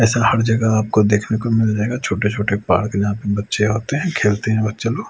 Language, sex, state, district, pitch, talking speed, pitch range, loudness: Hindi, male, Chandigarh, Chandigarh, 110 Hz, 235 wpm, 105-115 Hz, -18 LUFS